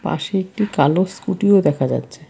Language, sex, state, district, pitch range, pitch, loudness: Bengali, female, West Bengal, Alipurduar, 185-205 Hz, 195 Hz, -18 LUFS